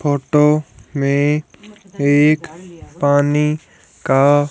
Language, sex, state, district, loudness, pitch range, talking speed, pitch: Hindi, female, Haryana, Rohtak, -16 LUFS, 145-155 Hz, 65 wpm, 145 Hz